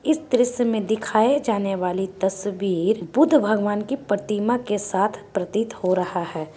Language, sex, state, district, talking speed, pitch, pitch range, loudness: Hindi, female, Bihar, Gaya, 155 wpm, 205 Hz, 190-235 Hz, -22 LUFS